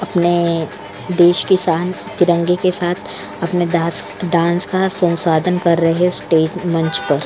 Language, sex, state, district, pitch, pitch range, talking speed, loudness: Hindi, female, Goa, North and South Goa, 175 Hz, 170-180 Hz, 155 wpm, -16 LUFS